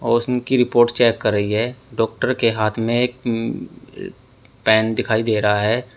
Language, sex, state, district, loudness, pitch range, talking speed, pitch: Hindi, male, Uttar Pradesh, Saharanpur, -18 LUFS, 110-120 Hz, 170 wpm, 115 Hz